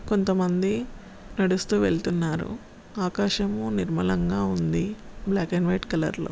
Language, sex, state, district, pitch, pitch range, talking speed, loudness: Telugu, female, Telangana, Karimnagar, 190 Hz, 165-205 Hz, 115 wpm, -26 LUFS